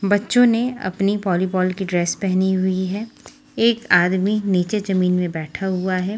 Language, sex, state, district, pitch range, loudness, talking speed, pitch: Hindi, female, Haryana, Jhajjar, 185-205 Hz, -20 LUFS, 165 wpm, 190 Hz